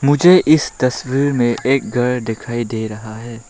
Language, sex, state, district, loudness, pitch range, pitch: Hindi, male, Arunachal Pradesh, Lower Dibang Valley, -16 LUFS, 115-140 Hz, 125 Hz